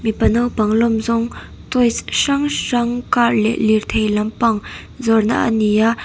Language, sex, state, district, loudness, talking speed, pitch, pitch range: Mizo, female, Mizoram, Aizawl, -17 LUFS, 140 wpm, 230 Hz, 220-240 Hz